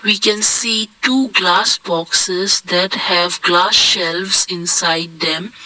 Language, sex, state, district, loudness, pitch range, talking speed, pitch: English, male, Assam, Kamrup Metropolitan, -14 LUFS, 175-215 Hz, 125 wpm, 185 Hz